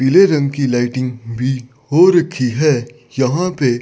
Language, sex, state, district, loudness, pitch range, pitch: Hindi, male, Chandigarh, Chandigarh, -15 LUFS, 125-150 Hz, 130 Hz